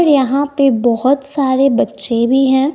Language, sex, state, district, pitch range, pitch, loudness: Hindi, female, Bihar, West Champaran, 260-280 Hz, 270 Hz, -14 LUFS